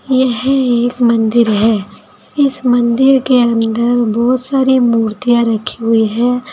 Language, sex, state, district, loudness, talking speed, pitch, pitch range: Hindi, female, Uttar Pradesh, Saharanpur, -13 LUFS, 130 wpm, 240 Hz, 230-255 Hz